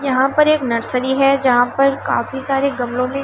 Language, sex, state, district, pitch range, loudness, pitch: Hindi, female, Delhi, New Delhi, 250-275 Hz, -16 LUFS, 265 Hz